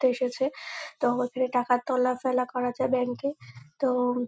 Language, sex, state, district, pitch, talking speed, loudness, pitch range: Bengali, female, West Bengal, Kolkata, 250 Hz, 180 wpm, -28 LUFS, 245-260 Hz